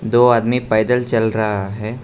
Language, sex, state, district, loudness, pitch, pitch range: Hindi, male, Arunachal Pradesh, Lower Dibang Valley, -16 LUFS, 115 Hz, 110-120 Hz